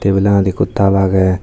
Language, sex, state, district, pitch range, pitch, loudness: Chakma, male, Tripura, Dhalai, 95-100 Hz, 95 Hz, -13 LUFS